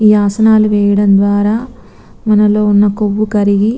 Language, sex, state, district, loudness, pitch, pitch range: Telugu, female, Telangana, Nalgonda, -11 LUFS, 210 Hz, 205-215 Hz